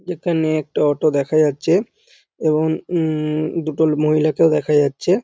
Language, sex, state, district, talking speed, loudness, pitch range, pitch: Bengali, male, West Bengal, North 24 Parganas, 135 wpm, -18 LUFS, 150-165 Hz, 155 Hz